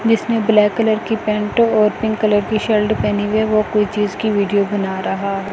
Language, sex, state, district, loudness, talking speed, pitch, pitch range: Hindi, female, Delhi, New Delhi, -17 LUFS, 215 wpm, 215 Hz, 205-220 Hz